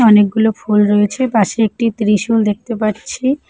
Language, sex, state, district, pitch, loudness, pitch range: Bengali, female, West Bengal, Cooch Behar, 220 Hz, -15 LUFS, 210-230 Hz